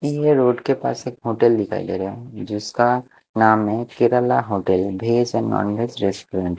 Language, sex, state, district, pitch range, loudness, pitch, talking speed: Hindi, male, Bihar, West Champaran, 100-120 Hz, -20 LUFS, 115 Hz, 190 wpm